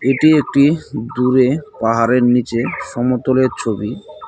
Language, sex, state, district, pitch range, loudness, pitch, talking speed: Bengali, male, West Bengal, Cooch Behar, 120-140 Hz, -16 LUFS, 130 Hz, 100 wpm